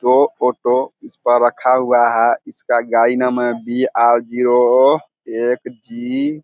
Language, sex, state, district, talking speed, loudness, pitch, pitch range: Hindi, male, Bihar, Vaishali, 160 wpm, -16 LUFS, 125 Hz, 120-130 Hz